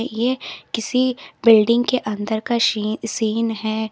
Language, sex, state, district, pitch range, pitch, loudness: Hindi, female, Uttar Pradesh, Lalitpur, 220-240 Hz, 225 Hz, -20 LUFS